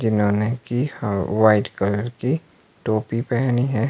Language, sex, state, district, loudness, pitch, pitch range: Hindi, male, Himachal Pradesh, Shimla, -21 LUFS, 115 Hz, 105-125 Hz